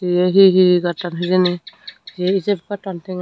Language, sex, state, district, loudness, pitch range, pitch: Chakma, female, Tripura, Unakoti, -17 LUFS, 180-190 Hz, 180 Hz